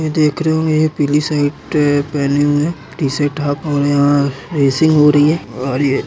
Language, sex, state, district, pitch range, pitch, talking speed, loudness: Hindi, male, Chhattisgarh, Bilaspur, 145-155 Hz, 145 Hz, 220 wpm, -15 LUFS